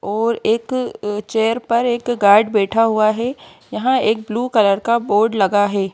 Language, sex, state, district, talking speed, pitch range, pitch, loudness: Hindi, female, Madhya Pradesh, Bhopal, 170 wpm, 205-235 Hz, 220 Hz, -17 LUFS